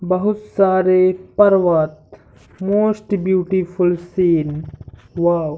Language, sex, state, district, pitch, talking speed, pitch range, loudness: Hindi, male, Uttar Pradesh, Hamirpur, 185 Hz, 95 wpm, 165-195 Hz, -17 LUFS